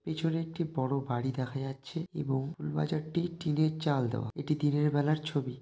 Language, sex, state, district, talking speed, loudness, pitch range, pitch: Bengali, male, West Bengal, North 24 Parganas, 170 wpm, -32 LUFS, 135-160 Hz, 145 Hz